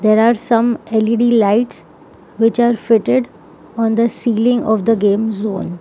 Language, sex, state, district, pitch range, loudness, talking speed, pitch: English, female, Telangana, Hyderabad, 220-235 Hz, -15 LUFS, 155 wpm, 225 Hz